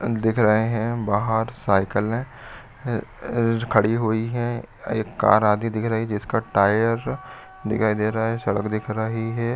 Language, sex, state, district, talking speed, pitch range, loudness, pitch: Hindi, male, Chhattisgarh, Bilaspur, 155 wpm, 105-115 Hz, -22 LUFS, 110 Hz